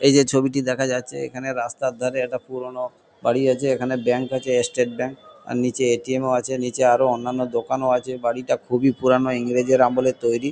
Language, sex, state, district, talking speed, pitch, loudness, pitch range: Bengali, male, West Bengal, Kolkata, 195 wpm, 125 Hz, -22 LUFS, 125-130 Hz